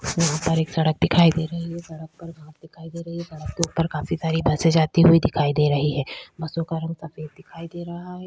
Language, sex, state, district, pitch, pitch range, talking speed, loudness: Hindi, female, Uttarakhand, Tehri Garhwal, 165 Hz, 155-170 Hz, 255 wpm, -22 LUFS